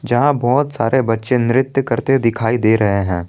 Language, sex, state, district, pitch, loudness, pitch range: Hindi, male, Jharkhand, Palamu, 120 Hz, -16 LUFS, 115-135 Hz